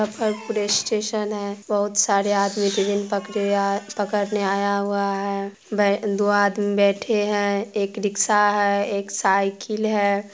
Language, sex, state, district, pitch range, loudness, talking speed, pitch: Hindi, female, Bihar, Muzaffarpur, 200-210 Hz, -22 LUFS, 140 wpm, 205 Hz